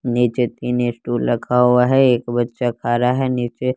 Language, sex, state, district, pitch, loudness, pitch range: Hindi, male, Bihar, West Champaran, 125 Hz, -18 LUFS, 120-125 Hz